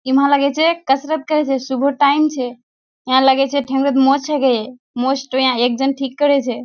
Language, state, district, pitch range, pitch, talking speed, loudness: Surjapuri, Bihar, Kishanganj, 260-280 Hz, 270 Hz, 205 wpm, -16 LUFS